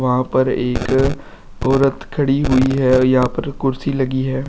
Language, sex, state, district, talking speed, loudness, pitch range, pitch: Hindi, male, Uttar Pradesh, Shamli, 160 wpm, -17 LUFS, 130-135 Hz, 130 Hz